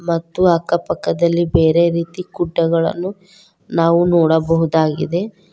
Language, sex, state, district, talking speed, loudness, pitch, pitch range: Kannada, female, Karnataka, Koppal, 85 wpm, -16 LUFS, 170 Hz, 165-180 Hz